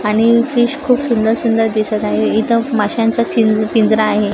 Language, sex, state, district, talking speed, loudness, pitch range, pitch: Marathi, female, Maharashtra, Gondia, 165 wpm, -14 LUFS, 215-235 Hz, 225 Hz